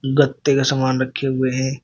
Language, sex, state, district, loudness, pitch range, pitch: Hindi, male, Uttar Pradesh, Shamli, -19 LUFS, 130-140 Hz, 135 Hz